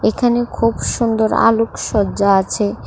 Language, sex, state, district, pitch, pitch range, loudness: Bengali, female, Tripura, West Tripura, 225 Hz, 205-230 Hz, -16 LUFS